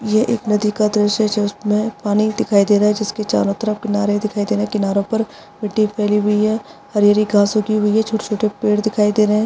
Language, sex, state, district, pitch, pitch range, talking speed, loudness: Hindi, female, Bihar, Madhepura, 210 Hz, 205-215 Hz, 260 wpm, -17 LUFS